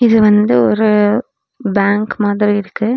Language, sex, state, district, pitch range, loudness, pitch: Tamil, female, Tamil Nadu, Namakkal, 205-225 Hz, -13 LUFS, 210 Hz